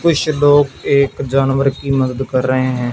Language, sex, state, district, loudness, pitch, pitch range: Hindi, male, Punjab, Fazilka, -15 LUFS, 135 Hz, 130-140 Hz